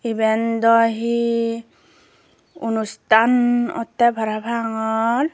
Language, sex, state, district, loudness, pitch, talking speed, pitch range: Chakma, female, Tripura, Dhalai, -19 LUFS, 230 Hz, 65 wpm, 225-235 Hz